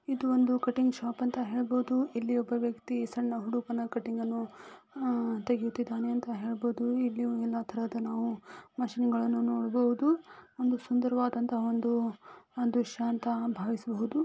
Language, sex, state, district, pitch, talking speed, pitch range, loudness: Kannada, female, Karnataka, Raichur, 240 Hz, 125 wpm, 230-245 Hz, -31 LUFS